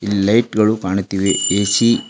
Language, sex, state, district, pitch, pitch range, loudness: Kannada, female, Karnataka, Bidar, 100 Hz, 95-110 Hz, -16 LUFS